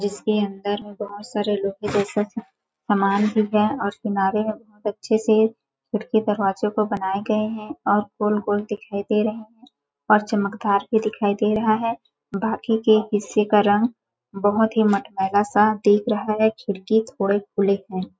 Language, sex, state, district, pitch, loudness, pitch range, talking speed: Hindi, female, Chhattisgarh, Balrampur, 210 Hz, -22 LUFS, 205-220 Hz, 165 wpm